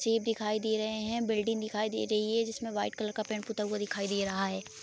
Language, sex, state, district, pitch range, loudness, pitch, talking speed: Hindi, female, Bihar, Begusarai, 210-225 Hz, -32 LUFS, 215 Hz, 260 wpm